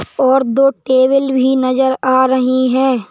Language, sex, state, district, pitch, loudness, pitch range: Hindi, male, Madhya Pradesh, Bhopal, 260 Hz, -13 LUFS, 255-265 Hz